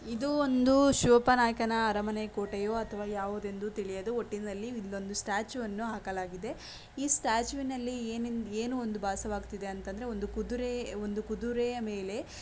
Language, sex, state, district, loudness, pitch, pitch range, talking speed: Kannada, female, Karnataka, Belgaum, -32 LUFS, 220 Hz, 205-240 Hz, 125 wpm